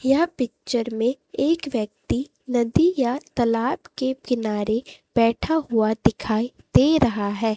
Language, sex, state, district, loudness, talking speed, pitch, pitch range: Hindi, female, Chhattisgarh, Raipur, -23 LUFS, 125 wpm, 240 Hz, 225-265 Hz